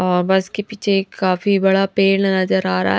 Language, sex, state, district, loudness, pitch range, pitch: Hindi, female, Punjab, Fazilka, -17 LUFS, 185-195 Hz, 190 Hz